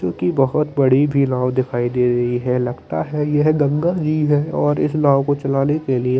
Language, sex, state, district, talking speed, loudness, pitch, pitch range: Hindi, male, Chandigarh, Chandigarh, 215 wpm, -18 LUFS, 135 Hz, 120-150 Hz